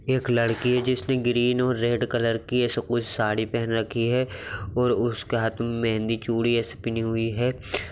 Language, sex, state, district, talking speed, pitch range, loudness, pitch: Magahi, male, Bihar, Gaya, 190 wpm, 115-125 Hz, -25 LUFS, 115 Hz